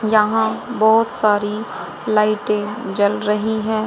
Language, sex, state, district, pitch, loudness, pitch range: Hindi, female, Haryana, Jhajjar, 215 Hz, -18 LUFS, 210-220 Hz